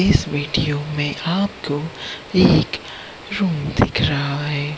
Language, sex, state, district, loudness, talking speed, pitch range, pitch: Hindi, male, Gujarat, Gandhinagar, -20 LUFS, 115 wpm, 145-160 Hz, 145 Hz